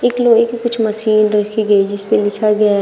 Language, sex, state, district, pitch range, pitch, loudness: Hindi, female, Uttar Pradesh, Shamli, 210-230 Hz, 215 Hz, -14 LUFS